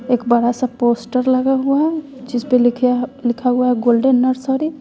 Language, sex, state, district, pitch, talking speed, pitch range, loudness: Hindi, female, Bihar, West Champaran, 250 Hz, 185 wpm, 245-265 Hz, -16 LUFS